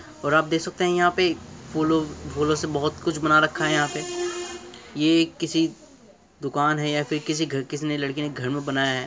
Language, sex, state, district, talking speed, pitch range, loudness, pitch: Hindi, male, Uttar Pradesh, Muzaffarnagar, 250 wpm, 145-165 Hz, -24 LUFS, 155 Hz